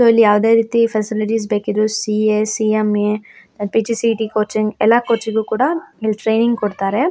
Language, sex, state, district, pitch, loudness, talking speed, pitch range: Kannada, female, Karnataka, Shimoga, 220 Hz, -17 LUFS, 135 wpm, 215-230 Hz